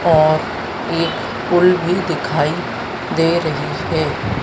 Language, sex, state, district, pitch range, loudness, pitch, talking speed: Hindi, female, Madhya Pradesh, Dhar, 155-175 Hz, -18 LUFS, 165 Hz, 110 wpm